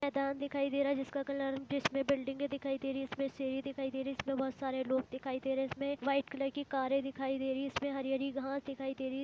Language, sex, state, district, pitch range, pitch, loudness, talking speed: Hindi, female, Chhattisgarh, Rajnandgaon, 270-275 Hz, 270 Hz, -36 LUFS, 285 wpm